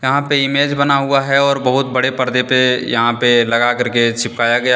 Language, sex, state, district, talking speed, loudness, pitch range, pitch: Hindi, male, Jharkhand, Deoghar, 225 wpm, -14 LUFS, 120-140 Hz, 125 Hz